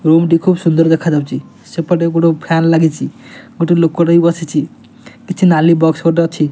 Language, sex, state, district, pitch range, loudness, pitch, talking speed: Odia, male, Odisha, Nuapada, 160-170 Hz, -13 LUFS, 165 Hz, 165 wpm